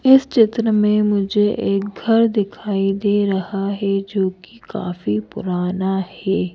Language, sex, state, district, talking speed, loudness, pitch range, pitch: Hindi, female, Madhya Pradesh, Bhopal, 135 wpm, -19 LUFS, 190-210 Hz, 200 Hz